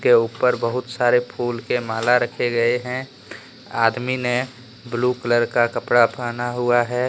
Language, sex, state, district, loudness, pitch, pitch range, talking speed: Hindi, male, Jharkhand, Deoghar, -20 LUFS, 120 Hz, 120-125 Hz, 160 wpm